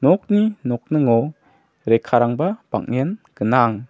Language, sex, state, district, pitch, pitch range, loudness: Garo, male, Meghalaya, South Garo Hills, 130 Hz, 120-180 Hz, -19 LUFS